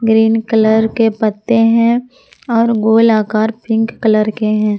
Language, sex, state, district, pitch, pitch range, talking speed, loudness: Hindi, female, Jharkhand, Palamu, 225 Hz, 215-230 Hz, 150 wpm, -13 LUFS